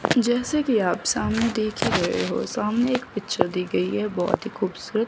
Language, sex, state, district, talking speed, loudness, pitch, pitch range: Hindi, female, Chandigarh, Chandigarh, 200 wpm, -24 LUFS, 215 Hz, 200-240 Hz